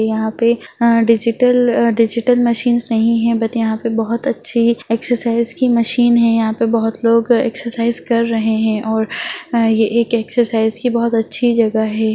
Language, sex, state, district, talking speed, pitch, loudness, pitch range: Hindi, female, Bihar, Jahanabad, 170 wpm, 230 Hz, -15 LUFS, 225-235 Hz